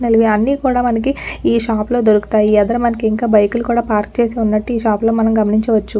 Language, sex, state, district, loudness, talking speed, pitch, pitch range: Telugu, female, Telangana, Nalgonda, -15 LUFS, 200 wpm, 225 Hz, 215-235 Hz